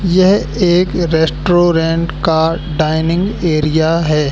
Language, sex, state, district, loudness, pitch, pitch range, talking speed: Hindi, male, Madhya Pradesh, Katni, -14 LUFS, 165 Hz, 160-175 Hz, 95 wpm